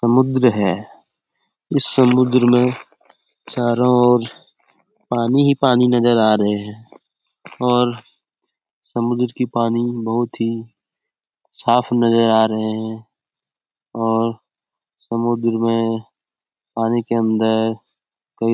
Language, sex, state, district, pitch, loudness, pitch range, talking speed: Hindi, male, Bihar, Jamui, 115 Hz, -17 LUFS, 115-125 Hz, 105 wpm